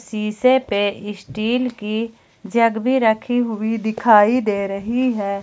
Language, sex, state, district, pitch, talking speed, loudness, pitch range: Hindi, female, Jharkhand, Ranchi, 220 Hz, 145 wpm, -19 LUFS, 210-240 Hz